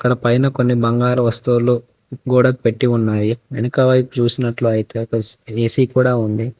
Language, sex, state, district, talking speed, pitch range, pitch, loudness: Telugu, male, Telangana, Hyderabad, 125 wpm, 115-125 Hz, 120 Hz, -16 LUFS